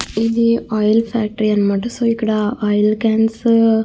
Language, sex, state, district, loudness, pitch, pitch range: Telugu, female, Andhra Pradesh, Krishna, -16 LUFS, 220 Hz, 210-230 Hz